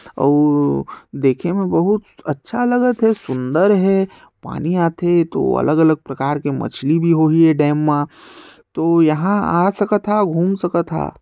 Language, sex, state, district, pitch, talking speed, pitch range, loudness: Chhattisgarhi, male, Chhattisgarh, Sarguja, 165 Hz, 150 wpm, 150-195 Hz, -17 LUFS